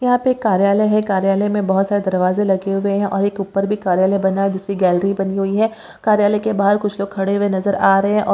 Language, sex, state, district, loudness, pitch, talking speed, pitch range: Hindi, female, Bihar, Saharsa, -17 LUFS, 200 Hz, 280 wpm, 195-205 Hz